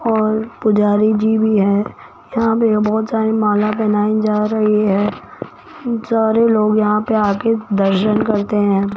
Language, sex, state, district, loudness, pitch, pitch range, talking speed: Hindi, female, Rajasthan, Jaipur, -16 LUFS, 215 Hz, 210-220 Hz, 155 wpm